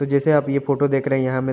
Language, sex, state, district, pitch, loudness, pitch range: Hindi, male, Uttar Pradesh, Jalaun, 140 Hz, -20 LUFS, 135-140 Hz